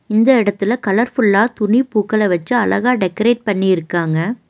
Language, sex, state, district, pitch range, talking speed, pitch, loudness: Tamil, female, Tamil Nadu, Nilgiris, 195-235 Hz, 135 wpm, 215 Hz, -15 LUFS